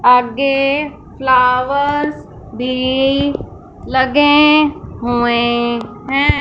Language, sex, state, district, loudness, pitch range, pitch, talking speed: Hindi, female, Punjab, Fazilka, -14 LUFS, 245-285 Hz, 265 Hz, 55 wpm